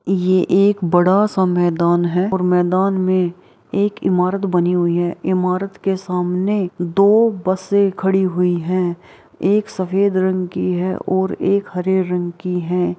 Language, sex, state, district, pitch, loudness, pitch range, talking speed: Hindi, female, Bihar, Araria, 185 Hz, -17 LUFS, 180-190 Hz, 150 wpm